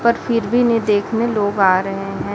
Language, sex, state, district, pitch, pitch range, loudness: Hindi, female, Chhattisgarh, Raipur, 210 Hz, 195-230 Hz, -17 LUFS